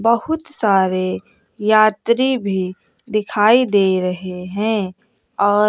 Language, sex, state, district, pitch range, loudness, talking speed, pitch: Hindi, female, Bihar, West Champaran, 185-230 Hz, -17 LUFS, 95 wpm, 210 Hz